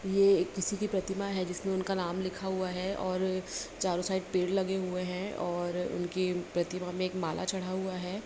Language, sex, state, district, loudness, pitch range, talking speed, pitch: Hindi, female, Bihar, Begusarai, -32 LUFS, 180-190 Hz, 195 wpm, 185 Hz